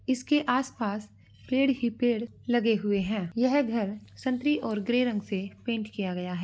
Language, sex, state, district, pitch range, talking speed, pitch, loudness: Hindi, female, Bihar, Jahanabad, 205-255 Hz, 175 wpm, 235 Hz, -28 LUFS